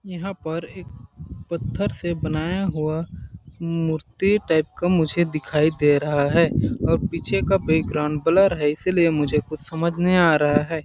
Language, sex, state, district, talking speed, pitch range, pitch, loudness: Hindi, male, Chhattisgarh, Balrampur, 160 wpm, 150-170 Hz, 160 Hz, -21 LUFS